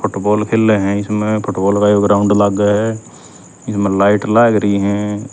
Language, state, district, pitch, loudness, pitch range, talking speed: Haryanvi, Haryana, Rohtak, 105 Hz, -14 LUFS, 100-105 Hz, 155 wpm